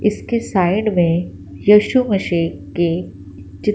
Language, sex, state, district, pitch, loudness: Hindi, female, Punjab, Fazilka, 175 Hz, -17 LUFS